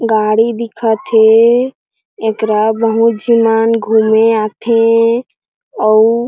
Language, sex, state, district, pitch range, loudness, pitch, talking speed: Chhattisgarhi, female, Chhattisgarh, Jashpur, 220-230 Hz, -12 LUFS, 225 Hz, 105 wpm